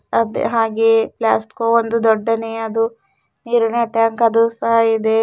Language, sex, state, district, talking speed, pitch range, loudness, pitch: Kannada, female, Karnataka, Bidar, 140 wpm, 225-230 Hz, -17 LUFS, 225 Hz